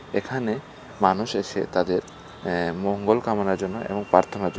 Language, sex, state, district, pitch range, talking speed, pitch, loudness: Bengali, male, Tripura, West Tripura, 95-110 Hz, 145 wpm, 100 Hz, -25 LUFS